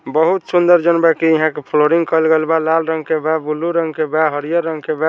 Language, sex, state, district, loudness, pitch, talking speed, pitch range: Bhojpuri, male, Bihar, Saran, -15 LUFS, 160 Hz, 270 wpm, 155-165 Hz